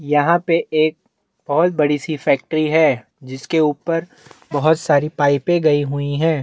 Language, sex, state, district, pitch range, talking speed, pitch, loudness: Hindi, male, Chhattisgarh, Bastar, 145-165 Hz, 150 wpm, 155 Hz, -18 LUFS